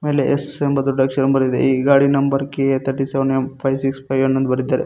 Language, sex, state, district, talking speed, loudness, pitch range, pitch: Kannada, male, Karnataka, Koppal, 220 wpm, -18 LUFS, 135-140 Hz, 135 Hz